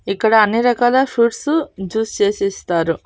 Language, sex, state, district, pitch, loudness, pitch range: Telugu, female, Andhra Pradesh, Annamaya, 220 Hz, -16 LUFS, 200-245 Hz